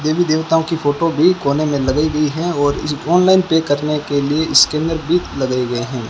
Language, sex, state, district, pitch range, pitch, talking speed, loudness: Hindi, male, Rajasthan, Bikaner, 145-165 Hz, 155 Hz, 215 wpm, -16 LUFS